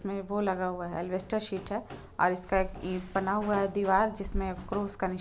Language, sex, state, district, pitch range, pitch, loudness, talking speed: Hindi, female, Jharkhand, Sahebganj, 185-200 Hz, 195 Hz, -31 LUFS, 205 wpm